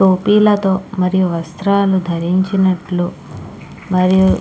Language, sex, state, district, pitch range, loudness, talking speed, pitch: Telugu, female, Andhra Pradesh, Krishna, 180-195 Hz, -15 LUFS, 55 wpm, 185 Hz